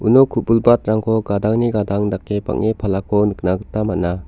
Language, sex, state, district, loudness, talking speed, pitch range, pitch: Garo, male, Meghalaya, South Garo Hills, -18 LUFS, 140 wpm, 100-110 Hz, 105 Hz